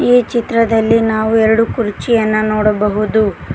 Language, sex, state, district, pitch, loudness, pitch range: Kannada, female, Karnataka, Koppal, 220 Hz, -14 LUFS, 215-230 Hz